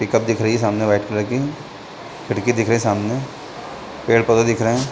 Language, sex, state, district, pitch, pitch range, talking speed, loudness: Hindi, male, Chhattisgarh, Bastar, 115 Hz, 105-120 Hz, 195 wpm, -19 LUFS